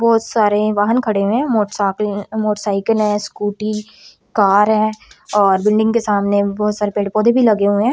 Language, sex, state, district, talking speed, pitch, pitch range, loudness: Hindi, female, Haryana, Rohtak, 165 wpm, 210 Hz, 205-220 Hz, -16 LUFS